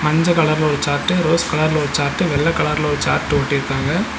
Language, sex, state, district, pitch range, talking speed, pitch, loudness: Tamil, male, Tamil Nadu, Nilgiris, 145-165 Hz, 185 wpm, 150 Hz, -17 LUFS